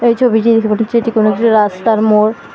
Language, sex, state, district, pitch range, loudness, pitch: Bengali, female, West Bengal, Alipurduar, 215-230 Hz, -12 LUFS, 225 Hz